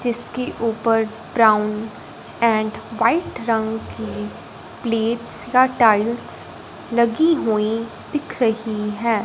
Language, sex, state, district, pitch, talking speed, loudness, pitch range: Hindi, female, Punjab, Fazilka, 230 Hz, 95 wpm, -20 LUFS, 220-235 Hz